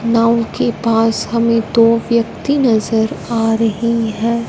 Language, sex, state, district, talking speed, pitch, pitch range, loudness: Hindi, female, Punjab, Fazilka, 135 wpm, 230 Hz, 225-230 Hz, -15 LUFS